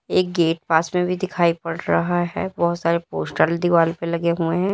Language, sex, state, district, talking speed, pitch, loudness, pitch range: Hindi, female, Uttar Pradesh, Lalitpur, 215 wpm, 170 Hz, -21 LUFS, 165-180 Hz